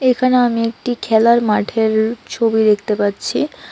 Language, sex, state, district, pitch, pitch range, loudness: Bengali, female, Tripura, West Tripura, 230 Hz, 220-245 Hz, -16 LUFS